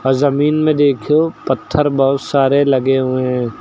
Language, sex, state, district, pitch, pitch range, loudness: Hindi, male, Uttar Pradesh, Lucknow, 140 Hz, 130-145 Hz, -15 LUFS